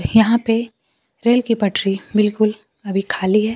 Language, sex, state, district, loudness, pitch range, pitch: Hindi, female, Bihar, Kaimur, -18 LUFS, 200-230 Hz, 215 Hz